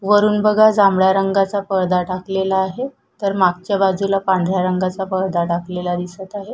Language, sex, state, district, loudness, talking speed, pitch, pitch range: Marathi, female, Maharashtra, Sindhudurg, -18 LUFS, 145 wpm, 190 Hz, 185-200 Hz